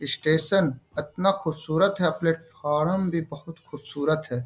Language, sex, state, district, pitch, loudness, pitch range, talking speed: Hindi, male, Bihar, Bhagalpur, 155 Hz, -25 LUFS, 150-165 Hz, 120 wpm